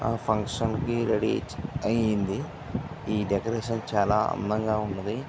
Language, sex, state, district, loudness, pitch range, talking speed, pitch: Telugu, male, Andhra Pradesh, Visakhapatnam, -28 LUFS, 105-115 Hz, 100 wpm, 110 Hz